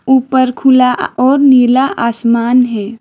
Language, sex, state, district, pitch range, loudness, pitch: Hindi, female, West Bengal, Alipurduar, 235-260 Hz, -11 LUFS, 250 Hz